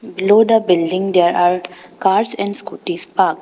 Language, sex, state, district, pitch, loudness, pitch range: English, female, Arunachal Pradesh, Papum Pare, 195 Hz, -16 LUFS, 180-220 Hz